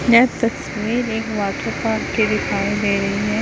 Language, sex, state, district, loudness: Hindi, female, Chhattisgarh, Raipur, -20 LUFS